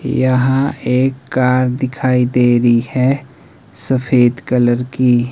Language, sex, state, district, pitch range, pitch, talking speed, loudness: Hindi, male, Himachal Pradesh, Shimla, 120-130 Hz, 125 Hz, 115 wpm, -15 LUFS